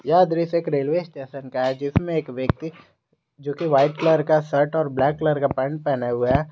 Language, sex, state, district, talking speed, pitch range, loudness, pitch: Hindi, male, Jharkhand, Garhwa, 220 wpm, 135-160 Hz, -22 LUFS, 145 Hz